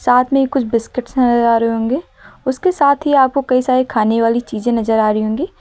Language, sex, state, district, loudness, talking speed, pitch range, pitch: Hindi, female, Uttar Pradesh, Lucknow, -15 LUFS, 235 wpm, 230-270 Hz, 250 Hz